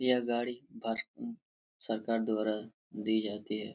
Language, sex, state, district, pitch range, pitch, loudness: Hindi, male, Jharkhand, Jamtara, 110-120 Hz, 115 Hz, -35 LUFS